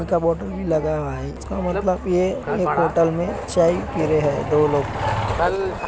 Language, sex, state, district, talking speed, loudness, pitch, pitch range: Hindi, male, Uttar Pradesh, Jalaun, 205 wpm, -21 LUFS, 160 Hz, 145-175 Hz